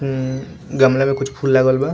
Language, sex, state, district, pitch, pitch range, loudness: Bhojpuri, male, Bihar, Gopalganj, 135 Hz, 130-135 Hz, -17 LUFS